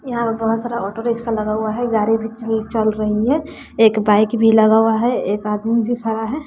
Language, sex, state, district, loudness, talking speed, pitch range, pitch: Hindi, female, Bihar, West Champaran, -17 LUFS, 230 wpm, 215-235 Hz, 225 Hz